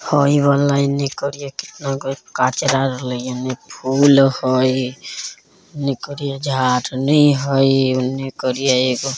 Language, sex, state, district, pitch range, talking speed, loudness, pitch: Bajjika, male, Bihar, Vaishali, 130-140 Hz, 85 wpm, -18 LUFS, 135 Hz